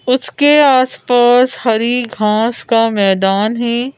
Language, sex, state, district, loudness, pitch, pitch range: Hindi, female, Madhya Pradesh, Bhopal, -13 LUFS, 240 Hz, 220-255 Hz